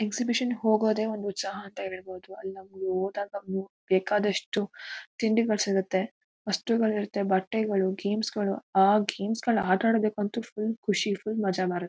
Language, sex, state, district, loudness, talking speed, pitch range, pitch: Kannada, female, Karnataka, Mysore, -28 LUFS, 120 wpm, 190-220 Hz, 205 Hz